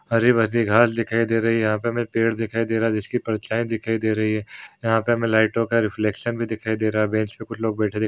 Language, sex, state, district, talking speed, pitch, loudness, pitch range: Hindi, male, Chhattisgarh, Rajnandgaon, 280 wpm, 115 Hz, -22 LUFS, 110-115 Hz